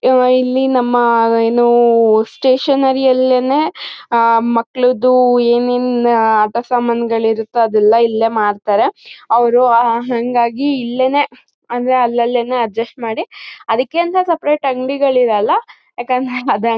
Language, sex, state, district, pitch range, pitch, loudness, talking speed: Kannada, female, Karnataka, Mysore, 230-260 Hz, 245 Hz, -14 LUFS, 95 wpm